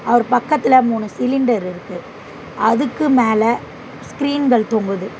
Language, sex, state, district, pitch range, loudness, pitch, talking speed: Tamil, female, Tamil Nadu, Chennai, 220-255 Hz, -17 LUFS, 240 Hz, 105 wpm